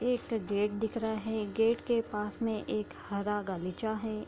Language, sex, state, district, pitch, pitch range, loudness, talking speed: Hindi, female, Bihar, Bhagalpur, 220 Hz, 205-225 Hz, -33 LUFS, 180 wpm